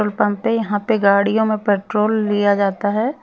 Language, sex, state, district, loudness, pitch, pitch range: Hindi, female, Chhattisgarh, Raipur, -17 LUFS, 210 Hz, 205-220 Hz